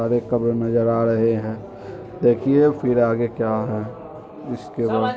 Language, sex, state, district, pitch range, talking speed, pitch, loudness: Hindi, male, Bihar, Muzaffarpur, 115-125 Hz, 140 wpm, 115 Hz, -20 LUFS